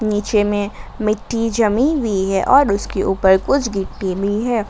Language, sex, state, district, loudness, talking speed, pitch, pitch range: Hindi, female, Jharkhand, Garhwa, -17 LUFS, 165 wpm, 210 Hz, 195-230 Hz